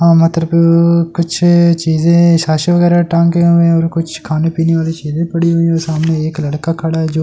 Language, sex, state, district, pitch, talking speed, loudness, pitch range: Hindi, male, Delhi, New Delhi, 165 Hz, 230 wpm, -12 LUFS, 160-170 Hz